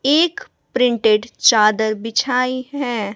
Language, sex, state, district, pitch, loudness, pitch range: Hindi, female, Bihar, West Champaran, 250 Hz, -17 LUFS, 220-265 Hz